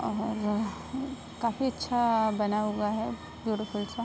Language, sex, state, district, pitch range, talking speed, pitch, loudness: Hindi, female, Uttar Pradesh, Budaun, 210-235 Hz, 120 wpm, 220 Hz, -30 LUFS